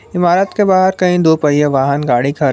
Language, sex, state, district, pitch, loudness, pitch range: Hindi, male, Jharkhand, Palamu, 160 Hz, -13 LUFS, 140-185 Hz